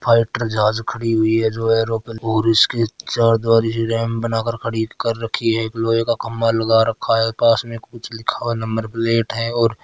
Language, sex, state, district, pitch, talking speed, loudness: Marwari, male, Rajasthan, Churu, 115 Hz, 190 wpm, -19 LUFS